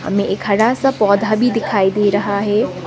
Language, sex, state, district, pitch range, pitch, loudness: Hindi, female, Sikkim, Gangtok, 200-225 Hz, 205 Hz, -16 LUFS